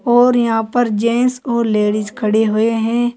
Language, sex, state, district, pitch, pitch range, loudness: Hindi, female, Uttar Pradesh, Saharanpur, 230 Hz, 220-240 Hz, -16 LUFS